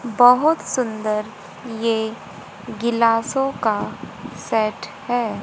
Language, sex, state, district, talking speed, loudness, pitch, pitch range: Hindi, female, Haryana, Rohtak, 75 wpm, -20 LUFS, 230 Hz, 215-245 Hz